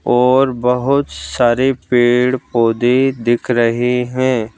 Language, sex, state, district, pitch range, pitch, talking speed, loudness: Hindi, male, Madhya Pradesh, Bhopal, 120-130 Hz, 125 Hz, 90 wpm, -15 LUFS